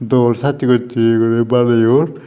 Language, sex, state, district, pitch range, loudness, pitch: Chakma, male, Tripura, Dhalai, 115-125 Hz, -14 LUFS, 120 Hz